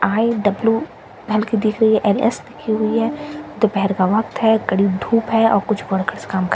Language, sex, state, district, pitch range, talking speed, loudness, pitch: Hindi, female, Bihar, Katihar, 200-225 Hz, 200 wpm, -18 LUFS, 220 Hz